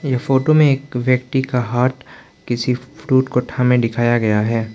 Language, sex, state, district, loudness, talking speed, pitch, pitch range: Hindi, male, Arunachal Pradesh, Lower Dibang Valley, -17 LUFS, 175 wpm, 125 Hz, 120-130 Hz